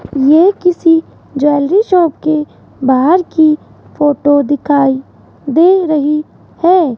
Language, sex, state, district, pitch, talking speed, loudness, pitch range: Hindi, female, Rajasthan, Jaipur, 305 Hz, 105 wpm, -12 LUFS, 285-340 Hz